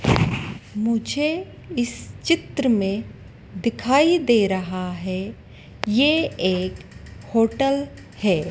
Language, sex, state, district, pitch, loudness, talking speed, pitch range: Hindi, female, Madhya Pradesh, Dhar, 225 Hz, -22 LUFS, 85 wpm, 190-280 Hz